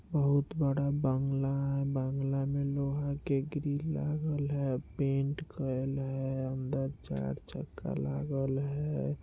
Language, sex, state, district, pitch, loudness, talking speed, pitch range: Hindi, male, Bihar, Muzaffarpur, 140 Hz, -33 LUFS, 125 wpm, 135-145 Hz